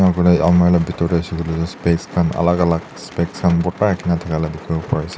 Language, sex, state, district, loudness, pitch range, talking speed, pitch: Nagamese, male, Nagaland, Dimapur, -18 LUFS, 85-90 Hz, 220 wpm, 85 Hz